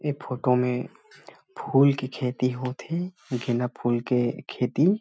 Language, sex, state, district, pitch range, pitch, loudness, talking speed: Chhattisgarhi, male, Chhattisgarh, Rajnandgaon, 125-140 Hz, 125 Hz, -26 LUFS, 145 wpm